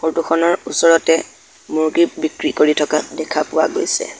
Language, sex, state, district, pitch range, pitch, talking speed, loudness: Assamese, male, Assam, Sonitpur, 155-165 Hz, 160 Hz, 145 wpm, -17 LUFS